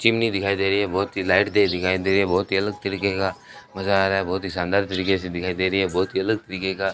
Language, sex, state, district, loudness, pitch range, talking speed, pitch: Hindi, male, Rajasthan, Bikaner, -22 LUFS, 95-100 Hz, 310 wpm, 95 Hz